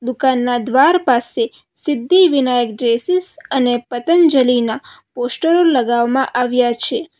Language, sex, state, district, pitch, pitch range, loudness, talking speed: Gujarati, female, Gujarat, Valsad, 255 Hz, 245-330 Hz, -15 LUFS, 90 wpm